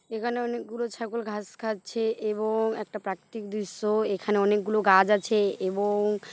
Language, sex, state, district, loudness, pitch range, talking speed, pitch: Bengali, male, West Bengal, Paschim Medinipur, -27 LUFS, 205-225 Hz, 140 wpm, 215 Hz